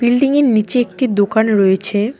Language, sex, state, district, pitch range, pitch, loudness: Bengali, female, West Bengal, Cooch Behar, 205-250 Hz, 220 Hz, -14 LUFS